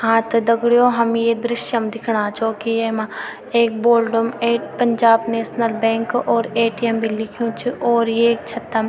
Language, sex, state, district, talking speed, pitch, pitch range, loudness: Garhwali, female, Uttarakhand, Tehri Garhwal, 170 wpm, 230 Hz, 225-235 Hz, -18 LUFS